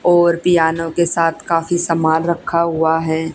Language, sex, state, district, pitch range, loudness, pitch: Hindi, female, Haryana, Jhajjar, 160-170 Hz, -16 LUFS, 165 Hz